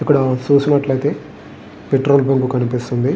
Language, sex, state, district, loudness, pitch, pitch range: Telugu, male, Andhra Pradesh, Guntur, -16 LUFS, 135 Hz, 130-140 Hz